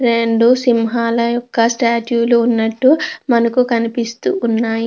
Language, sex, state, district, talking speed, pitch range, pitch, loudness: Telugu, female, Andhra Pradesh, Krishna, 110 wpm, 230-240 Hz, 235 Hz, -15 LUFS